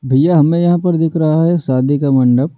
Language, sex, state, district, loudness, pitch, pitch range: Hindi, male, Delhi, New Delhi, -13 LUFS, 155 Hz, 135-170 Hz